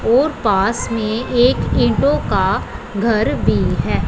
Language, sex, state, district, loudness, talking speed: Hindi, female, Punjab, Pathankot, -17 LUFS, 130 wpm